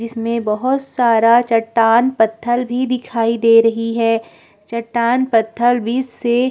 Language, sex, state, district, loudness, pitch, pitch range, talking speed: Hindi, female, Chhattisgarh, Korba, -16 LUFS, 235 Hz, 230-245 Hz, 140 wpm